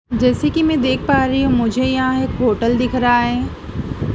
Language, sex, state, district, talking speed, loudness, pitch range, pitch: Hindi, female, Madhya Pradesh, Dhar, 200 wpm, -17 LUFS, 240-265 Hz, 255 Hz